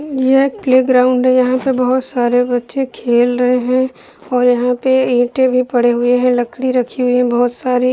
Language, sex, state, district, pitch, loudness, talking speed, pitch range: Hindi, female, Uttar Pradesh, Budaun, 250 Hz, -14 LUFS, 210 wpm, 245-255 Hz